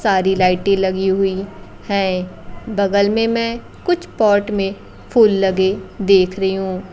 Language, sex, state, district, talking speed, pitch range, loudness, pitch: Hindi, female, Bihar, Kaimur, 140 wpm, 190-205 Hz, -17 LUFS, 195 Hz